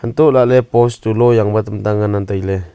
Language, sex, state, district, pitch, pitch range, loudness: Wancho, male, Arunachal Pradesh, Longding, 110 Hz, 105-120 Hz, -14 LUFS